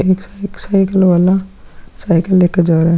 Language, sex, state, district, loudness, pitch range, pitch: Hindi, male, Bihar, Vaishali, -13 LUFS, 175-195 Hz, 185 Hz